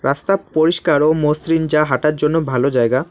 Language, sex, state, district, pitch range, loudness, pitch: Bengali, male, West Bengal, Alipurduar, 140-160 Hz, -16 LUFS, 150 Hz